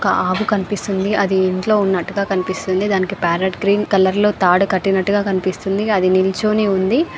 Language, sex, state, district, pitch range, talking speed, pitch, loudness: Telugu, female, Andhra Pradesh, Anantapur, 190-205 Hz, 150 wpm, 195 Hz, -17 LUFS